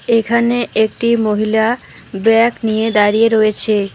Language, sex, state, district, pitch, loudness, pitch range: Bengali, female, West Bengal, Alipurduar, 220 Hz, -14 LUFS, 215-230 Hz